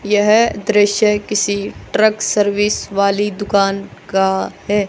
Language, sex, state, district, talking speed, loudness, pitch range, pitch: Hindi, female, Haryana, Charkhi Dadri, 110 wpm, -16 LUFS, 200-210 Hz, 205 Hz